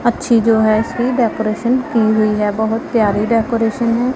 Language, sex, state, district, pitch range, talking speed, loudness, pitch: Hindi, female, Punjab, Pathankot, 220-235 Hz, 175 wpm, -15 LUFS, 225 Hz